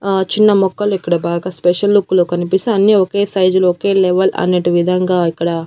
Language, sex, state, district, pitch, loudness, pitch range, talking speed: Telugu, female, Andhra Pradesh, Annamaya, 185 Hz, -14 LUFS, 175-200 Hz, 170 wpm